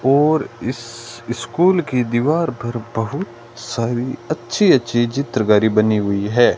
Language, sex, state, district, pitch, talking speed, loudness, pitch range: Hindi, male, Rajasthan, Bikaner, 120 Hz, 130 wpm, -18 LUFS, 115-135 Hz